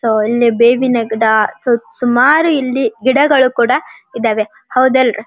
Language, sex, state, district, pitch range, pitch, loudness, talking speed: Kannada, female, Karnataka, Dharwad, 225-260 Hz, 240 Hz, -13 LUFS, 135 wpm